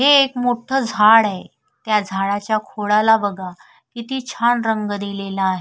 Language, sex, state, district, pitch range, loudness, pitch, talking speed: Marathi, female, Maharashtra, Sindhudurg, 200-240 Hz, -18 LUFS, 215 Hz, 160 wpm